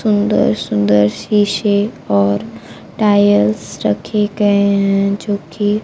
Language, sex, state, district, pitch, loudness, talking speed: Hindi, female, Bihar, Kaimur, 200 Hz, -15 LUFS, 105 wpm